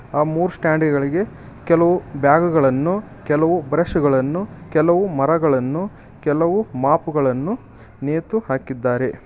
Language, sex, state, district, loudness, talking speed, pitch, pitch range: Kannada, male, Karnataka, Koppal, -19 LUFS, 110 wpm, 150 Hz, 135-170 Hz